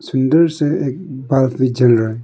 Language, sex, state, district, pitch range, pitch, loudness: Hindi, male, Arunachal Pradesh, Longding, 125-150 Hz, 130 Hz, -15 LUFS